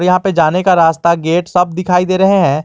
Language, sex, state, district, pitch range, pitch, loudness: Hindi, male, Jharkhand, Garhwa, 170-185 Hz, 180 Hz, -12 LUFS